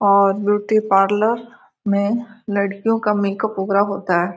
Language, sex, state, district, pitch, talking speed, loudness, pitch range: Hindi, female, Bihar, Gopalganj, 205 Hz, 140 wpm, -19 LUFS, 195-220 Hz